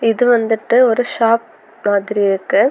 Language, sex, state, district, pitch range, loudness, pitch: Tamil, female, Tamil Nadu, Kanyakumari, 215-245 Hz, -15 LUFS, 230 Hz